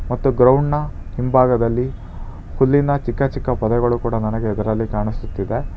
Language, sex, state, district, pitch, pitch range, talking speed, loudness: Kannada, male, Karnataka, Bangalore, 120 Hz, 110-130 Hz, 115 wpm, -19 LUFS